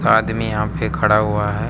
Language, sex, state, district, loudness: Hindi, male, Arunachal Pradesh, Lower Dibang Valley, -18 LUFS